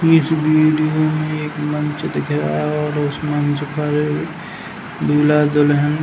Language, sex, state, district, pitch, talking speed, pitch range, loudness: Hindi, male, Uttar Pradesh, Hamirpur, 150 Hz, 150 wpm, 145-155 Hz, -18 LUFS